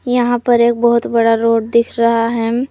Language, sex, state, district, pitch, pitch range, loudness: Hindi, female, Jharkhand, Palamu, 235 Hz, 230-240 Hz, -14 LUFS